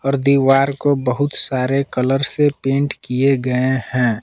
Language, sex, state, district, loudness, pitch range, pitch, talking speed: Hindi, male, Jharkhand, Palamu, -16 LUFS, 130-140 Hz, 135 Hz, 155 wpm